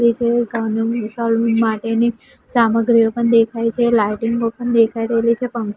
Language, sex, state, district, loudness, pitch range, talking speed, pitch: Gujarati, female, Gujarat, Gandhinagar, -17 LUFS, 225-235 Hz, 125 wpm, 230 Hz